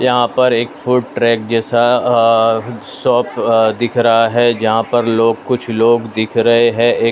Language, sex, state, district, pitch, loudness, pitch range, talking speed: Hindi, male, Maharashtra, Mumbai Suburban, 115 Hz, -14 LUFS, 115-120 Hz, 185 wpm